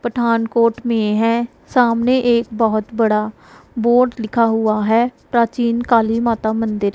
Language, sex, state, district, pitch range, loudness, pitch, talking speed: Hindi, female, Punjab, Pathankot, 220-235 Hz, -17 LUFS, 230 Hz, 130 wpm